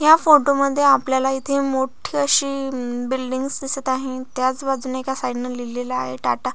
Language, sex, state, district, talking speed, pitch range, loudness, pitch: Marathi, female, Maharashtra, Solapur, 175 wpm, 255-275 Hz, -20 LUFS, 265 Hz